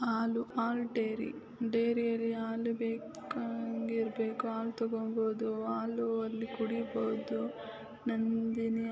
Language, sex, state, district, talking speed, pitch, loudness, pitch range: Kannada, female, Karnataka, Chamarajanagar, 95 wpm, 230 Hz, -35 LUFS, 225-235 Hz